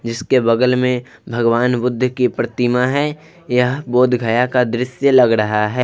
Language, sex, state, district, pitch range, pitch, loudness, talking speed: Hindi, male, Bihar, Vaishali, 120-125 Hz, 125 Hz, -16 LUFS, 155 wpm